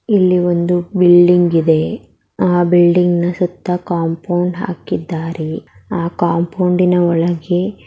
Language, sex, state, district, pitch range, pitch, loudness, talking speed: Kannada, female, Karnataka, Mysore, 170-180 Hz, 175 Hz, -15 LUFS, 90 wpm